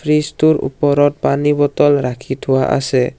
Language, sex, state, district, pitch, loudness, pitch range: Assamese, male, Assam, Kamrup Metropolitan, 145 Hz, -15 LUFS, 135-150 Hz